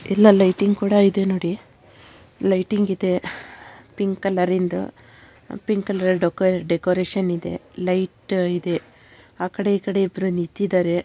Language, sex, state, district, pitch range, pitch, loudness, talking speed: Kannada, female, Karnataka, Shimoga, 180-200 Hz, 185 Hz, -21 LUFS, 115 wpm